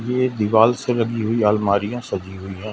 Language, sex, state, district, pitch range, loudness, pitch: Hindi, male, Madhya Pradesh, Umaria, 100-120 Hz, -20 LUFS, 110 Hz